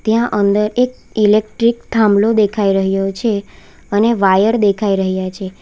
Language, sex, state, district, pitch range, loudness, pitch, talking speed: Gujarati, female, Gujarat, Valsad, 195-225 Hz, -15 LUFS, 210 Hz, 140 wpm